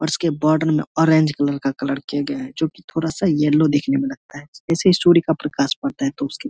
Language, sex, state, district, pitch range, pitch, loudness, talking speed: Hindi, male, Bihar, Saharsa, 140-165 Hz, 155 Hz, -19 LUFS, 275 wpm